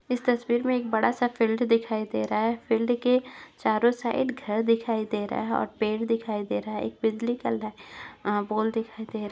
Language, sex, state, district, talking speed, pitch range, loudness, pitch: Hindi, female, Chhattisgarh, Bastar, 220 wpm, 215-240 Hz, -27 LUFS, 225 Hz